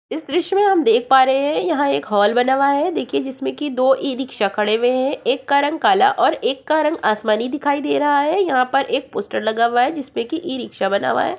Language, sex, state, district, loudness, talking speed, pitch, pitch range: Hindi, female, Uttar Pradesh, Jyotiba Phule Nagar, -18 LUFS, 270 wpm, 275 Hz, 240-315 Hz